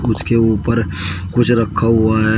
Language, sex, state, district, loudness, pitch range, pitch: Hindi, male, Uttar Pradesh, Shamli, -15 LUFS, 105-115 Hz, 115 Hz